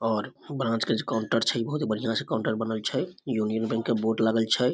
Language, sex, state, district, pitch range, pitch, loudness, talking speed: Maithili, male, Bihar, Samastipur, 110-115 Hz, 115 Hz, -27 LUFS, 250 wpm